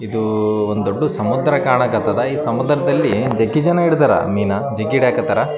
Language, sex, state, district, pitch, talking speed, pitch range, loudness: Kannada, male, Karnataka, Raichur, 110 Hz, 105 wpm, 105-130 Hz, -17 LUFS